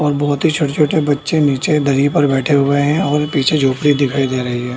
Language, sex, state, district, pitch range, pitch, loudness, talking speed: Hindi, male, Bihar, Darbhanga, 140-150 Hz, 145 Hz, -15 LUFS, 225 wpm